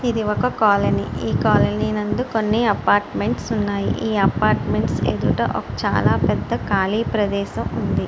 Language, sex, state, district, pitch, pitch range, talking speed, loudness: Telugu, female, Andhra Pradesh, Srikakulam, 210 Hz, 200-220 Hz, 135 wpm, -20 LUFS